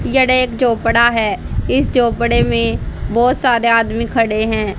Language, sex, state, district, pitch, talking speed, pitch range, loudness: Hindi, female, Haryana, Charkhi Dadri, 230 Hz, 150 wpm, 220-245 Hz, -15 LUFS